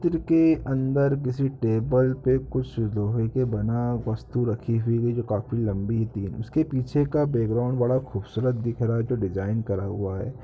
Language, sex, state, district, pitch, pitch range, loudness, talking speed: Hindi, male, Uttar Pradesh, Ghazipur, 120 Hz, 110-130 Hz, -25 LUFS, 180 wpm